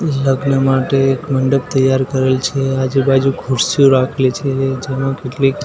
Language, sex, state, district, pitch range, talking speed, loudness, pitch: Gujarati, male, Gujarat, Gandhinagar, 130-135 Hz, 140 wpm, -15 LUFS, 135 Hz